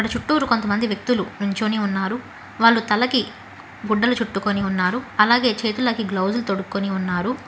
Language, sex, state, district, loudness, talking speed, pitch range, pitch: Telugu, female, Telangana, Hyderabad, -21 LUFS, 120 wpm, 200-240 Hz, 220 Hz